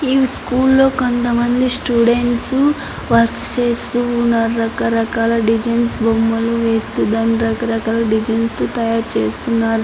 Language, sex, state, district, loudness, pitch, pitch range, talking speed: Telugu, female, Andhra Pradesh, Anantapur, -16 LUFS, 230 Hz, 225-245 Hz, 120 wpm